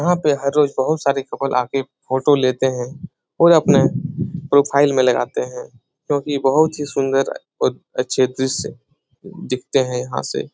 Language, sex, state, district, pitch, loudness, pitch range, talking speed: Hindi, male, Bihar, Jahanabad, 140 Hz, -18 LUFS, 130-150 Hz, 160 wpm